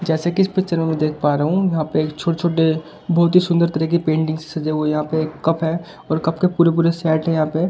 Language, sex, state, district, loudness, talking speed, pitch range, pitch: Hindi, male, Delhi, New Delhi, -19 LUFS, 265 wpm, 155-170 Hz, 160 Hz